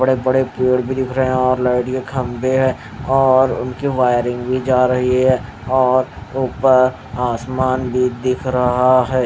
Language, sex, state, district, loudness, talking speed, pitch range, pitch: Hindi, male, Haryana, Rohtak, -17 LUFS, 170 wpm, 125-130 Hz, 130 Hz